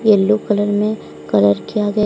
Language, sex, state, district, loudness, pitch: Hindi, female, Odisha, Sambalpur, -16 LUFS, 205 Hz